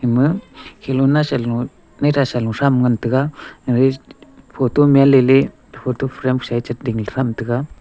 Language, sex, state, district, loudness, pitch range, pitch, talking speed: Wancho, male, Arunachal Pradesh, Longding, -17 LUFS, 120-140 Hz, 130 Hz, 125 wpm